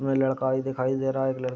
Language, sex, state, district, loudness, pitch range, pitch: Hindi, male, Bihar, Madhepura, -26 LUFS, 130-135 Hz, 135 Hz